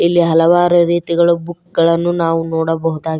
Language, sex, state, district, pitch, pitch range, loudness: Kannada, female, Karnataka, Koppal, 170 Hz, 165-175 Hz, -14 LUFS